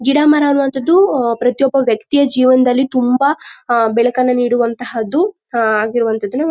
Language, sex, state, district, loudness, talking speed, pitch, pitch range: Kannada, female, Karnataka, Mysore, -14 LUFS, 90 wpm, 255 Hz, 235-280 Hz